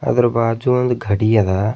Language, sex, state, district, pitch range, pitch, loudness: Kannada, male, Karnataka, Bidar, 110-125 Hz, 115 Hz, -17 LUFS